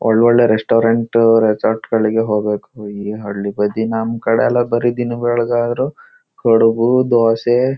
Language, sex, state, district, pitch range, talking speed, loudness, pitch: Kannada, male, Karnataka, Shimoga, 110-120 Hz, 130 wpm, -15 LUFS, 115 Hz